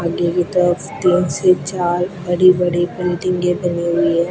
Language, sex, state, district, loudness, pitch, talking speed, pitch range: Hindi, female, Rajasthan, Bikaner, -17 LUFS, 180 Hz, 165 wpm, 175-180 Hz